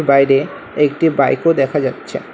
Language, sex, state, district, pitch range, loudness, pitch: Bengali, male, West Bengal, Alipurduar, 135-160 Hz, -15 LUFS, 145 Hz